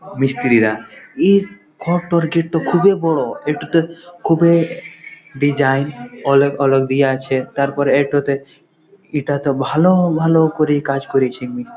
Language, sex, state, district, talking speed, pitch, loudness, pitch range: Bengali, male, West Bengal, Malda, 110 wpm, 145 Hz, -16 LUFS, 135-165 Hz